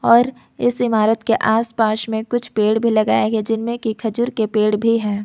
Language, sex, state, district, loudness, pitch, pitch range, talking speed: Hindi, female, Jharkhand, Ranchi, -18 LUFS, 225 Hz, 220-235 Hz, 205 wpm